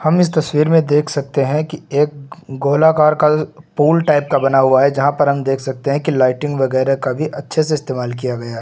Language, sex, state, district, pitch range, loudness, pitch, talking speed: Hindi, male, Uttar Pradesh, Lucknow, 135-155 Hz, -16 LUFS, 145 Hz, 230 wpm